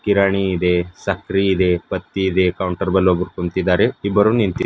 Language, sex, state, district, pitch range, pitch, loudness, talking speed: Kannada, male, Karnataka, Bidar, 90-100 Hz, 95 Hz, -18 LUFS, 155 wpm